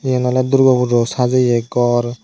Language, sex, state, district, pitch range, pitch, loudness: Chakma, male, Tripura, Dhalai, 120-130 Hz, 125 Hz, -15 LUFS